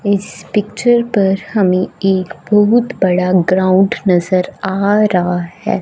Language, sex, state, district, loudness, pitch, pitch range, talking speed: Hindi, female, Punjab, Fazilka, -14 LUFS, 195 Hz, 185-210 Hz, 125 wpm